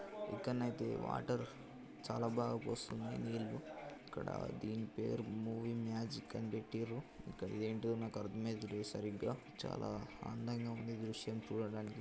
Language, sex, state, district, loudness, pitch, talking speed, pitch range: Telugu, male, Telangana, Karimnagar, -43 LUFS, 110 Hz, 115 wpm, 110-115 Hz